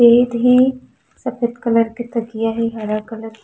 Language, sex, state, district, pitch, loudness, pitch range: Chhattisgarhi, female, Chhattisgarh, Raigarh, 230 Hz, -18 LUFS, 225-240 Hz